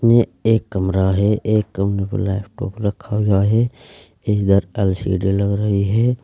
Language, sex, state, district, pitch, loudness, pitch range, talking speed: Hindi, male, Uttar Pradesh, Saharanpur, 100 Hz, -19 LUFS, 95-110 Hz, 155 wpm